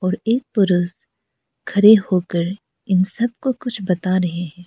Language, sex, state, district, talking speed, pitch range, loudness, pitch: Hindi, female, Arunachal Pradesh, Lower Dibang Valley, 140 wpm, 180-220 Hz, -19 LUFS, 185 Hz